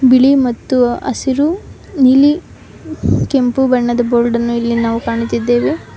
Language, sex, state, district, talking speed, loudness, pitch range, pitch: Kannada, female, Karnataka, Bangalore, 120 wpm, -14 LUFS, 235-265 Hz, 245 Hz